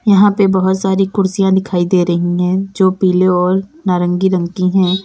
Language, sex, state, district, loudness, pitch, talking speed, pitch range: Hindi, female, Uttar Pradesh, Lalitpur, -14 LUFS, 185 Hz, 190 wpm, 180-195 Hz